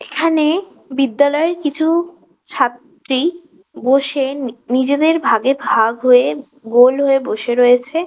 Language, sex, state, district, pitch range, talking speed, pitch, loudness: Bengali, female, West Bengal, Kolkata, 250-325 Hz, 105 wpm, 280 Hz, -15 LUFS